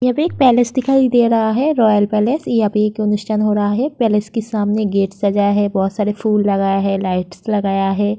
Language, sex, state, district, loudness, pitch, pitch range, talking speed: Hindi, female, Uttar Pradesh, Jyotiba Phule Nagar, -16 LUFS, 210 Hz, 205-230 Hz, 225 wpm